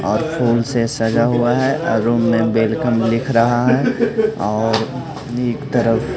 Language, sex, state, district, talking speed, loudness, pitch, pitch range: Hindi, male, Haryana, Rohtak, 155 wpm, -17 LUFS, 120 Hz, 115-130 Hz